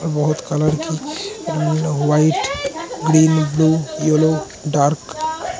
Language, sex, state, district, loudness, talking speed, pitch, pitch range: Hindi, male, Uttar Pradesh, Hamirpur, -18 LUFS, 95 wpm, 160 Hz, 155-210 Hz